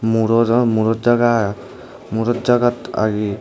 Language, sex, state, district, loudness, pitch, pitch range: Chakma, male, Tripura, Dhalai, -17 LUFS, 115 Hz, 110-120 Hz